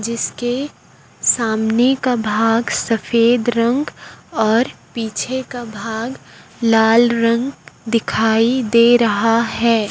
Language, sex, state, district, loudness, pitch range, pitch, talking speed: Hindi, male, Chhattisgarh, Raipur, -17 LUFS, 225-240 Hz, 230 Hz, 95 wpm